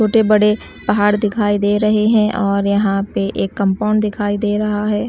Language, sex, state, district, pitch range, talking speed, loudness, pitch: Hindi, female, Maharashtra, Washim, 205-210 Hz, 190 wpm, -16 LUFS, 210 Hz